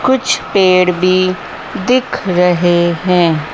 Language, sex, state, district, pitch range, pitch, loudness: Hindi, female, Madhya Pradesh, Dhar, 175-190 Hz, 180 Hz, -13 LUFS